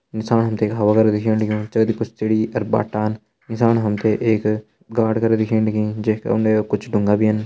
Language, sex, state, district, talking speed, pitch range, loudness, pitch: Hindi, male, Uttarakhand, Uttarkashi, 215 wpm, 105-110 Hz, -19 LUFS, 110 Hz